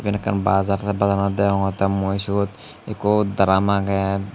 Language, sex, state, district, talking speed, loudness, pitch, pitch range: Chakma, male, Tripura, Unakoti, 165 wpm, -20 LUFS, 100 Hz, 95-100 Hz